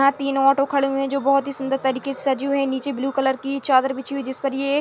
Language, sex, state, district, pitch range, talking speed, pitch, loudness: Hindi, female, Chhattisgarh, Bastar, 270-275 Hz, 335 wpm, 275 Hz, -21 LUFS